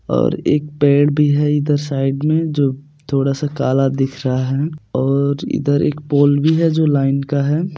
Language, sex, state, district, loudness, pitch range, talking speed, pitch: Hindi, male, Bihar, Supaul, -17 LUFS, 140-150 Hz, 185 wpm, 145 Hz